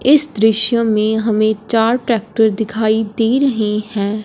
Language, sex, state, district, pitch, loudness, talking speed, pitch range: Hindi, female, Punjab, Fazilka, 220 Hz, -15 LUFS, 125 wpm, 215-230 Hz